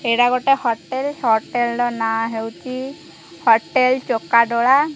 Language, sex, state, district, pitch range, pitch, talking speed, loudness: Odia, female, Odisha, Khordha, 225-260 Hz, 240 Hz, 110 wpm, -18 LUFS